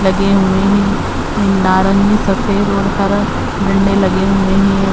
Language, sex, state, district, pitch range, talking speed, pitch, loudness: Hindi, female, Uttar Pradesh, Hamirpur, 195-200 Hz, 135 wpm, 195 Hz, -13 LUFS